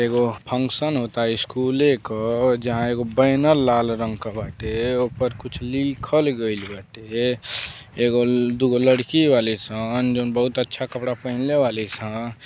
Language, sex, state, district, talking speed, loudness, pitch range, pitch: Bhojpuri, male, Uttar Pradesh, Deoria, 145 wpm, -22 LUFS, 115-130 Hz, 120 Hz